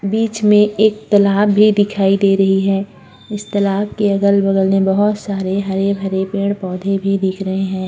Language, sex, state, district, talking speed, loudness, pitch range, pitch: Hindi, female, Uttarakhand, Tehri Garhwal, 165 wpm, -15 LUFS, 195-205 Hz, 200 Hz